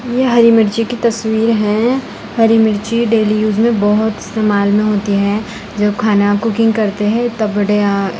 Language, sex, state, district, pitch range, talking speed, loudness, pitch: Hindi, female, Uttar Pradesh, Varanasi, 205-230 Hz, 175 wpm, -14 LUFS, 215 Hz